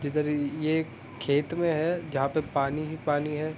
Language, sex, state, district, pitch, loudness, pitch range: Hindi, male, Jharkhand, Sahebganj, 150 Hz, -28 LUFS, 145-155 Hz